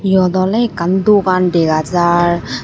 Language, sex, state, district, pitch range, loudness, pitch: Chakma, female, Tripura, Unakoti, 170-190 Hz, -13 LUFS, 180 Hz